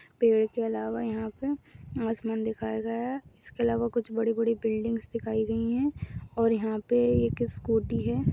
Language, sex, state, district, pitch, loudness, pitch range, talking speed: Hindi, female, Maharashtra, Solapur, 225 Hz, -29 LUFS, 220-230 Hz, 175 wpm